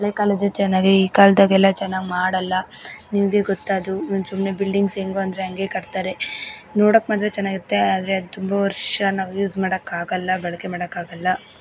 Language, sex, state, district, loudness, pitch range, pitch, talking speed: Kannada, female, Karnataka, Gulbarga, -20 LUFS, 185-200 Hz, 195 Hz, 150 wpm